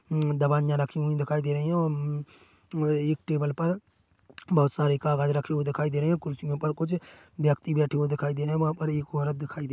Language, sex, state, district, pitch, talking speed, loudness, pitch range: Hindi, male, Chhattisgarh, Korba, 150 Hz, 245 wpm, -28 LUFS, 145-155 Hz